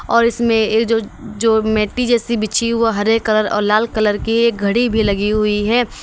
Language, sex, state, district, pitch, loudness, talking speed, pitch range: Hindi, female, Uttar Pradesh, Lalitpur, 225 Hz, -16 LUFS, 220 wpm, 215-230 Hz